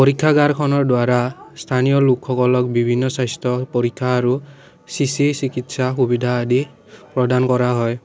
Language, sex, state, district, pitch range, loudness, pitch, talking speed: Assamese, male, Assam, Kamrup Metropolitan, 125-140 Hz, -18 LUFS, 125 Hz, 110 wpm